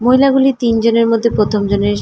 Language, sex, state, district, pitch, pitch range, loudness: Bengali, female, West Bengal, Malda, 230 Hz, 210-250 Hz, -13 LUFS